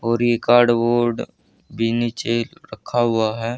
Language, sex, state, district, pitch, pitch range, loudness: Hindi, male, Haryana, Charkhi Dadri, 115 Hz, 115-120 Hz, -19 LUFS